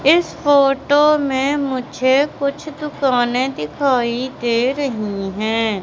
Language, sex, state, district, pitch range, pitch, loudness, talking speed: Hindi, female, Madhya Pradesh, Katni, 240-285 Hz, 265 Hz, -18 LUFS, 105 wpm